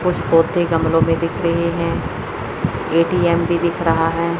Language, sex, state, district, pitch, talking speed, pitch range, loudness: Hindi, male, Chandigarh, Chandigarh, 170 Hz, 165 wpm, 165-170 Hz, -18 LUFS